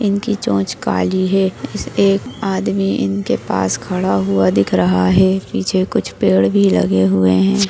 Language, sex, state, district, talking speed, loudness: Hindi, female, Maharashtra, Dhule, 165 wpm, -16 LUFS